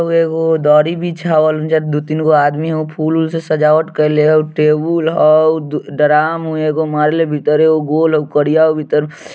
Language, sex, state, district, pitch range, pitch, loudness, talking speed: Bajjika, male, Bihar, Vaishali, 150-160 Hz, 155 Hz, -13 LUFS, 180 wpm